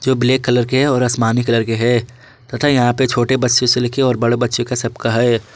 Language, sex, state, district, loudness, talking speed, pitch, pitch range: Hindi, male, Jharkhand, Ranchi, -15 LUFS, 235 wpm, 120 Hz, 120-125 Hz